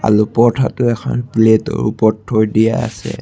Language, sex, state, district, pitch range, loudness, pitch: Assamese, male, Assam, Sonitpur, 110-120 Hz, -15 LUFS, 110 Hz